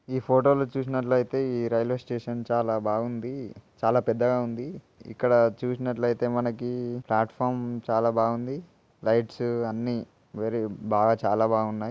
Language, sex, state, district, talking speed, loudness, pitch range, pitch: Telugu, male, Telangana, Nalgonda, 115 wpm, -26 LUFS, 115-125 Hz, 120 Hz